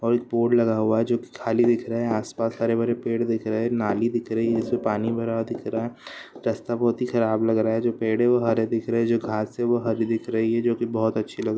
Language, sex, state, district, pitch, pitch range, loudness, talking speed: Hindi, male, Bihar, Sitamarhi, 115 Hz, 110-120 Hz, -24 LUFS, 315 wpm